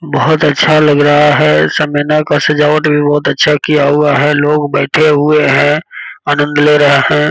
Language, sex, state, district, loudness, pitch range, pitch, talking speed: Hindi, male, Bihar, Purnia, -10 LUFS, 145-150 Hz, 150 Hz, 180 wpm